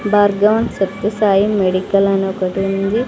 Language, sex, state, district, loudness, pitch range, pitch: Telugu, female, Andhra Pradesh, Sri Satya Sai, -16 LUFS, 195-210 Hz, 195 Hz